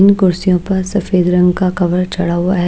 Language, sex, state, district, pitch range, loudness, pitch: Hindi, female, Maharashtra, Washim, 180-190 Hz, -14 LUFS, 185 Hz